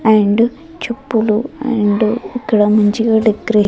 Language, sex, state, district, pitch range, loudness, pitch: Telugu, female, Andhra Pradesh, Sri Satya Sai, 215-240 Hz, -15 LUFS, 220 Hz